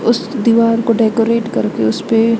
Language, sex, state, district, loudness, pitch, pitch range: Hindi, female, Haryana, Charkhi Dadri, -14 LUFS, 230 Hz, 225-230 Hz